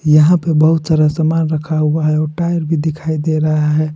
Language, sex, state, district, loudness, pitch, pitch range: Hindi, male, Jharkhand, Palamu, -14 LUFS, 155 Hz, 155-160 Hz